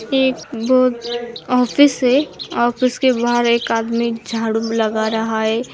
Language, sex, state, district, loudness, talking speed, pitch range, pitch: Hindi, female, Maharashtra, Aurangabad, -17 LUFS, 135 wpm, 225-255 Hz, 235 Hz